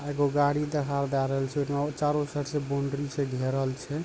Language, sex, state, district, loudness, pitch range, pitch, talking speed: Maithili, male, Bihar, Supaul, -29 LUFS, 140-145 Hz, 145 Hz, 205 wpm